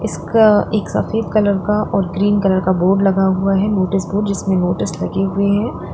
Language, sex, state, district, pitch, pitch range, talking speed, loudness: Hindi, female, Uttar Pradesh, Lalitpur, 195 Hz, 190-210 Hz, 200 wpm, -16 LUFS